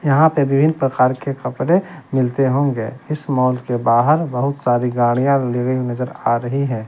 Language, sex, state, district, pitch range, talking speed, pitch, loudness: Hindi, male, Bihar, West Champaran, 125-140 Hz, 175 wpm, 130 Hz, -18 LUFS